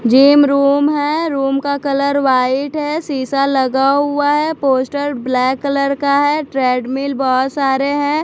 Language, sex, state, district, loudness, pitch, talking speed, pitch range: Hindi, female, Chhattisgarh, Raipur, -15 LUFS, 280 Hz, 155 wpm, 265-290 Hz